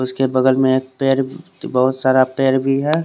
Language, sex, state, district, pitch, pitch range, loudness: Hindi, male, Chandigarh, Chandigarh, 130 Hz, 130-135 Hz, -17 LUFS